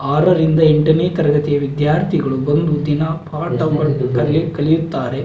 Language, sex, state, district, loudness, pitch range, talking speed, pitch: Kannada, male, Karnataka, Belgaum, -16 LUFS, 145-160 Hz, 105 wpm, 150 Hz